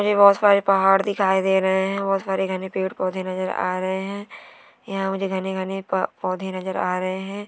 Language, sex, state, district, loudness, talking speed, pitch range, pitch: Hindi, female, West Bengal, Purulia, -22 LUFS, 215 wpm, 190-195 Hz, 190 Hz